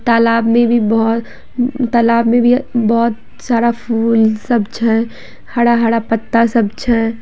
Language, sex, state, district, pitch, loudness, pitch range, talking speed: Maithili, female, Bihar, Samastipur, 230 Hz, -14 LUFS, 225-235 Hz, 135 wpm